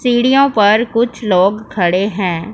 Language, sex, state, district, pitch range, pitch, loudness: Hindi, female, Punjab, Pathankot, 190-240 Hz, 215 Hz, -13 LUFS